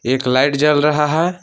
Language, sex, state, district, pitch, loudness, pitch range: Hindi, male, Jharkhand, Palamu, 150 Hz, -15 LUFS, 130-150 Hz